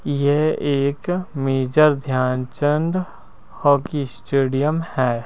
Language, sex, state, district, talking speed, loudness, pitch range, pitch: Hindi, male, Madhya Pradesh, Bhopal, 80 wpm, -20 LUFS, 130-155 Hz, 140 Hz